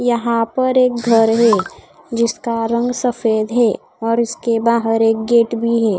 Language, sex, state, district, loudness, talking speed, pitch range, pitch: Hindi, female, Odisha, Khordha, -16 LUFS, 160 wpm, 225-235 Hz, 230 Hz